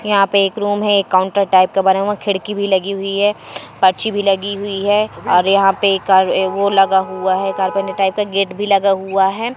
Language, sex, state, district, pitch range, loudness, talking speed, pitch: Hindi, female, Madhya Pradesh, Katni, 190-200 Hz, -15 LUFS, 230 wpm, 195 Hz